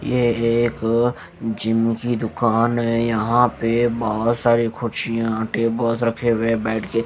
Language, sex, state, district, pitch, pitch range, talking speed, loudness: Hindi, male, Haryana, Jhajjar, 115 Hz, 115-120 Hz, 145 wpm, -20 LUFS